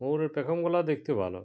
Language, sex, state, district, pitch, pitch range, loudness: Bengali, male, West Bengal, Purulia, 150 Hz, 145-165 Hz, -29 LUFS